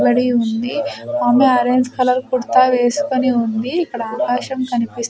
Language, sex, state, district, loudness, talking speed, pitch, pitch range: Telugu, female, Andhra Pradesh, Sri Satya Sai, -17 LUFS, 130 wpm, 250 Hz, 240-260 Hz